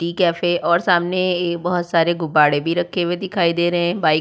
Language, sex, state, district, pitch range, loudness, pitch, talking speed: Hindi, female, Uttar Pradesh, Budaun, 170-175 Hz, -18 LUFS, 175 Hz, 230 wpm